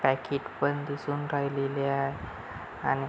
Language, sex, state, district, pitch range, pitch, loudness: Marathi, male, Maharashtra, Chandrapur, 135-145 Hz, 140 Hz, -31 LUFS